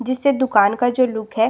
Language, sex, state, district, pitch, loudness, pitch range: Hindi, female, Chhattisgarh, Bastar, 245 Hz, -17 LUFS, 220-255 Hz